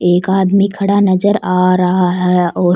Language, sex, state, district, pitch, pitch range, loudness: Rajasthani, female, Rajasthan, Churu, 185 Hz, 180-195 Hz, -13 LUFS